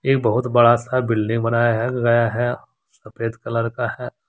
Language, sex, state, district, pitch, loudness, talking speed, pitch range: Hindi, male, Jharkhand, Deoghar, 120 Hz, -19 LUFS, 170 wpm, 115-120 Hz